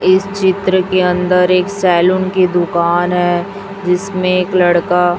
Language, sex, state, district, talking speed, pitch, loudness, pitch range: Hindi, female, Chhattisgarh, Raipur, 140 wpm, 180 Hz, -13 LUFS, 175-185 Hz